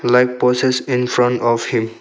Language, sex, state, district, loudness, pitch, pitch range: English, male, Arunachal Pradesh, Longding, -16 LUFS, 125 Hz, 120-125 Hz